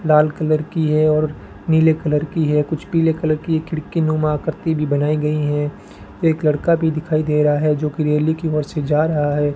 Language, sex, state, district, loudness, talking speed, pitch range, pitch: Hindi, male, Rajasthan, Bikaner, -18 LUFS, 225 wpm, 150-160 Hz, 155 Hz